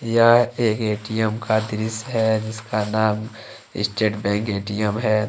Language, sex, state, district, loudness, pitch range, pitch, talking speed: Hindi, male, Jharkhand, Deoghar, -21 LUFS, 105-110 Hz, 110 Hz, 135 wpm